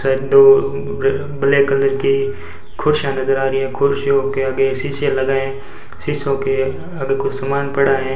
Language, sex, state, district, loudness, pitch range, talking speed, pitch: Hindi, male, Rajasthan, Bikaner, -17 LUFS, 135-140 Hz, 160 wpm, 135 Hz